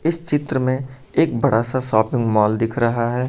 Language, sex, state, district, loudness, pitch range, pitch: Hindi, male, Uttar Pradesh, Lucknow, -19 LUFS, 115-140 Hz, 130 Hz